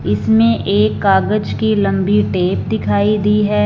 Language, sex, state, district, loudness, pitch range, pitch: Hindi, female, Punjab, Fazilka, -15 LUFS, 100-110 Hz, 105 Hz